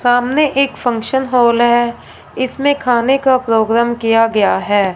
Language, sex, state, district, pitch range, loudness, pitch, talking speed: Hindi, female, Punjab, Fazilka, 230-265 Hz, -14 LUFS, 240 Hz, 145 wpm